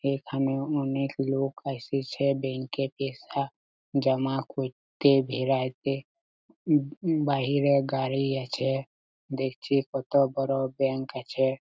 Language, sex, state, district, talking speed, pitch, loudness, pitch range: Bengali, male, West Bengal, Purulia, 105 wpm, 135 Hz, -28 LUFS, 135-140 Hz